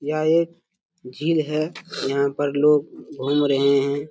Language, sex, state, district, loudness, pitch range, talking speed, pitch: Hindi, male, Jharkhand, Jamtara, -21 LUFS, 140-160 Hz, 145 wpm, 145 Hz